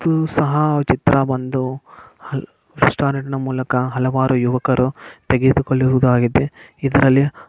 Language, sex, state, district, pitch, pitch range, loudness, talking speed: Kannada, male, Karnataka, Mysore, 130 Hz, 130-140 Hz, -18 LUFS, 80 wpm